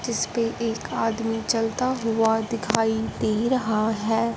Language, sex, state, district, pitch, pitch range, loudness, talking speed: Hindi, female, Punjab, Fazilka, 225 Hz, 220-230 Hz, -24 LUFS, 125 wpm